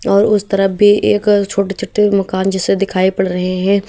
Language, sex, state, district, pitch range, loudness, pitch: Hindi, female, Uttar Pradesh, Lalitpur, 190-205 Hz, -14 LUFS, 195 Hz